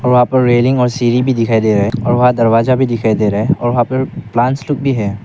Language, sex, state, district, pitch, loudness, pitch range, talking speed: Hindi, male, Arunachal Pradesh, Papum Pare, 120 Hz, -13 LUFS, 115-130 Hz, 275 wpm